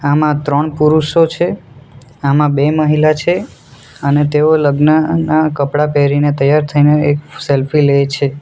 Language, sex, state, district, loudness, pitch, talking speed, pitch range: Gujarati, male, Gujarat, Valsad, -13 LUFS, 145 Hz, 135 wpm, 140-155 Hz